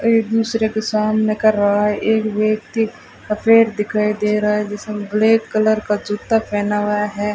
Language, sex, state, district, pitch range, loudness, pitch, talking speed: Hindi, female, Rajasthan, Bikaner, 210-220 Hz, -18 LUFS, 215 Hz, 180 wpm